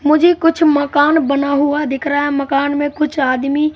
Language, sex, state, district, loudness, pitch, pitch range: Hindi, male, Madhya Pradesh, Katni, -15 LUFS, 290 Hz, 280-305 Hz